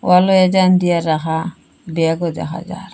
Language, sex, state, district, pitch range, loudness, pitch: Bengali, female, Assam, Hailakandi, 160-185 Hz, -16 LUFS, 170 Hz